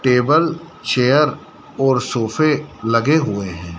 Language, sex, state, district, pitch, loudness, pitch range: Hindi, male, Madhya Pradesh, Dhar, 135 Hz, -17 LUFS, 115-155 Hz